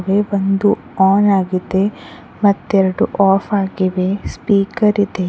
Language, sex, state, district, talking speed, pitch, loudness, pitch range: Kannada, female, Karnataka, Koppal, 90 wpm, 195 Hz, -16 LUFS, 190-205 Hz